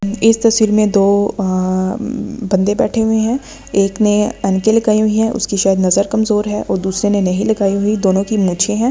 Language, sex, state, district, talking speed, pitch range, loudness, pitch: Hindi, female, Delhi, New Delhi, 200 wpm, 195-220 Hz, -15 LUFS, 210 Hz